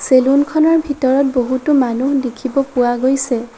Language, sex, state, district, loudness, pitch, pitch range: Assamese, female, Assam, Sonitpur, -15 LUFS, 265 Hz, 250-275 Hz